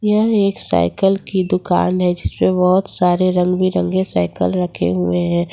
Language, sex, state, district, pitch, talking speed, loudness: Hindi, female, Jharkhand, Ranchi, 180 Hz, 175 wpm, -17 LUFS